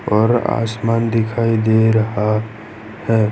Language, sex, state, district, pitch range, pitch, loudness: Hindi, male, Gujarat, Valsad, 110-115 Hz, 110 Hz, -17 LUFS